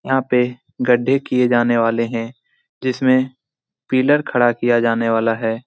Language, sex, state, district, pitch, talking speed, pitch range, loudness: Hindi, male, Bihar, Lakhisarai, 125 Hz, 150 wpm, 115-130 Hz, -17 LUFS